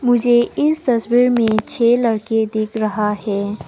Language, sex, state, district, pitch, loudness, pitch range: Hindi, female, Arunachal Pradesh, Papum Pare, 230 Hz, -17 LUFS, 215-240 Hz